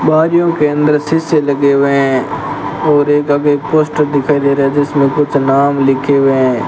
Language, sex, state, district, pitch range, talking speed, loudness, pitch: Hindi, male, Rajasthan, Bikaner, 140-150 Hz, 190 wpm, -12 LUFS, 145 Hz